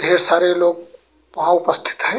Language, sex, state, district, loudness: Bhojpuri, male, Uttar Pradesh, Gorakhpur, -17 LUFS